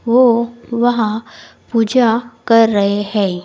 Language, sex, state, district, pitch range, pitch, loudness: Hindi, female, Odisha, Khordha, 210-235 Hz, 230 Hz, -15 LUFS